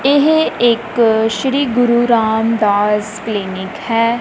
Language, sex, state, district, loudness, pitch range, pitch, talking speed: Punjabi, male, Punjab, Kapurthala, -14 LUFS, 220-245 Hz, 230 Hz, 100 wpm